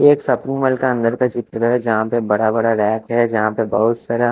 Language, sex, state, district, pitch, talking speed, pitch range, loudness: Hindi, male, Chhattisgarh, Raipur, 115 Hz, 275 wpm, 110-125 Hz, -17 LUFS